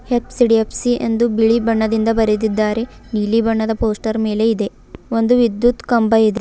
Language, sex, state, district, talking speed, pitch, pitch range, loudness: Kannada, female, Karnataka, Bidar, 130 wpm, 225 Hz, 220-235 Hz, -17 LUFS